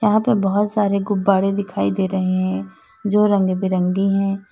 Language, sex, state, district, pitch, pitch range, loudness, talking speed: Hindi, female, Uttar Pradesh, Lalitpur, 195 Hz, 190-205 Hz, -19 LUFS, 160 wpm